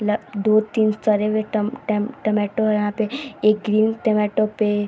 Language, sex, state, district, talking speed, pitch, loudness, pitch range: Hindi, female, Bihar, Vaishali, 195 wpm, 215 Hz, -20 LUFS, 210-220 Hz